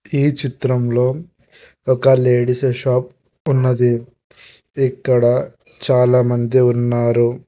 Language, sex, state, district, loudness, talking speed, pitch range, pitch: Telugu, male, Telangana, Hyderabad, -16 LUFS, 70 wpm, 120-130 Hz, 125 Hz